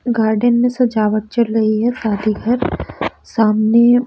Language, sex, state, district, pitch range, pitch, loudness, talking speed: Hindi, female, Bihar, West Champaran, 215-240 Hz, 225 Hz, -16 LUFS, 135 wpm